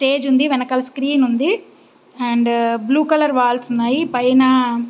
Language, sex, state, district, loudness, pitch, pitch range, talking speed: Telugu, female, Andhra Pradesh, Visakhapatnam, -17 LUFS, 255 Hz, 245-280 Hz, 145 wpm